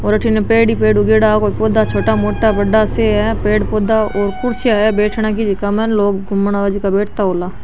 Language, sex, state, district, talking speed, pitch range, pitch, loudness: Marwari, female, Rajasthan, Nagaur, 220 wpm, 200-220 Hz, 210 Hz, -14 LUFS